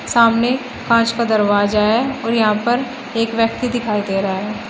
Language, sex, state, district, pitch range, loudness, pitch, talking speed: Hindi, female, Uttar Pradesh, Shamli, 210-240 Hz, -17 LUFS, 230 Hz, 180 wpm